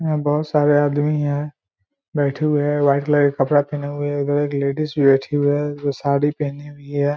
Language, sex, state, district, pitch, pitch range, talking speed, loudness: Hindi, male, Bihar, Muzaffarpur, 145 Hz, 140-145 Hz, 225 wpm, -19 LUFS